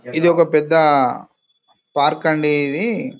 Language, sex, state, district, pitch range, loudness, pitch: Telugu, male, Telangana, Karimnagar, 150-170 Hz, -16 LUFS, 160 Hz